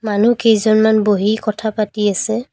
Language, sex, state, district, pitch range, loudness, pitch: Assamese, female, Assam, Kamrup Metropolitan, 210-220 Hz, -15 LUFS, 215 Hz